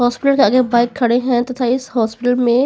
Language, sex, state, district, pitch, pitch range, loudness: Hindi, female, Haryana, Charkhi Dadri, 245 Hz, 240-255 Hz, -15 LUFS